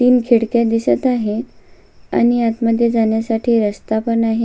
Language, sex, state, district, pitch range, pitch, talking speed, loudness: Marathi, female, Maharashtra, Sindhudurg, 225-235 Hz, 230 Hz, 150 wpm, -16 LUFS